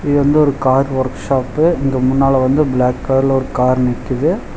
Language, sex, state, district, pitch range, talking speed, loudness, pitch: Tamil, male, Tamil Nadu, Chennai, 130-140 Hz, 170 wpm, -15 LUFS, 135 Hz